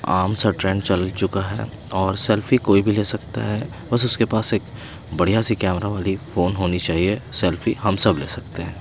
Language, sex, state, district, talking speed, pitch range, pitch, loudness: Hindi, male, Himachal Pradesh, Shimla, 205 wpm, 95-110 Hz, 100 Hz, -20 LUFS